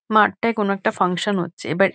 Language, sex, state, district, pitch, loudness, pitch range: Bengali, female, West Bengal, Kolkata, 195 Hz, -20 LUFS, 185-215 Hz